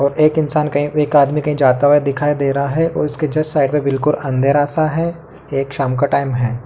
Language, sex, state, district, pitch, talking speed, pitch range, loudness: Hindi, male, Uttar Pradesh, Etah, 145 Hz, 235 wpm, 140-150 Hz, -16 LUFS